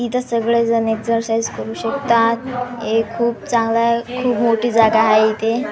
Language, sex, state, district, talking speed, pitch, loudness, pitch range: Marathi, female, Maharashtra, Washim, 145 wpm, 230 Hz, -17 LUFS, 225-235 Hz